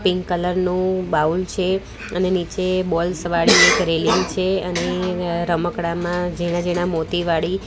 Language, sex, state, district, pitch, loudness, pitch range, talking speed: Gujarati, female, Gujarat, Gandhinagar, 175 Hz, -19 LUFS, 170-185 Hz, 140 wpm